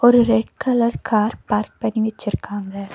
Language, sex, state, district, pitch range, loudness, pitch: Tamil, female, Tamil Nadu, Nilgiris, 205-235 Hz, -20 LUFS, 215 Hz